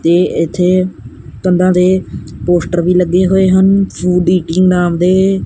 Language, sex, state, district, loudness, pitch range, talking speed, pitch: Punjabi, male, Punjab, Kapurthala, -12 LUFS, 175-185 Hz, 120 wpm, 180 Hz